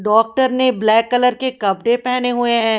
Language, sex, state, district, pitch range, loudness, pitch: Hindi, female, Haryana, Jhajjar, 220-250 Hz, -16 LUFS, 240 Hz